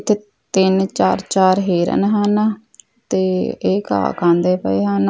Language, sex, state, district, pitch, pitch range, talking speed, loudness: Punjabi, female, Punjab, Fazilka, 190 Hz, 175-210 Hz, 140 wpm, -17 LUFS